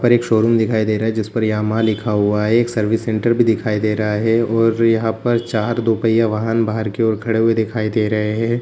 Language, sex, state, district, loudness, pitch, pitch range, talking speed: Hindi, male, Bihar, Jamui, -17 LUFS, 110 Hz, 110-115 Hz, 235 wpm